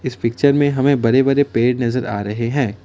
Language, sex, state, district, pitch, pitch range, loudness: Hindi, male, Assam, Kamrup Metropolitan, 125 Hz, 115-140 Hz, -17 LUFS